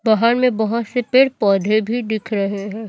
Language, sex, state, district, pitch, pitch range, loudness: Hindi, female, Chhattisgarh, Raipur, 220 Hz, 210-240 Hz, -18 LUFS